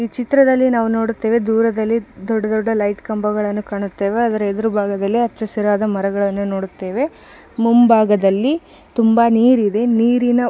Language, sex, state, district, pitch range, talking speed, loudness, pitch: Kannada, female, Karnataka, Bijapur, 205-235 Hz, 120 wpm, -17 LUFS, 225 Hz